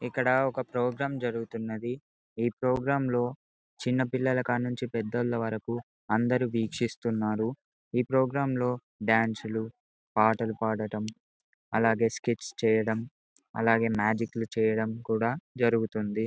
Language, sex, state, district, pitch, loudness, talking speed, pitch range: Telugu, male, Telangana, Karimnagar, 115 Hz, -29 LUFS, 105 wpm, 110-125 Hz